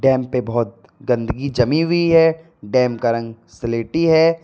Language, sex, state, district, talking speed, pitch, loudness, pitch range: Hindi, male, Uttar Pradesh, Lalitpur, 160 wpm, 130 Hz, -18 LUFS, 115-160 Hz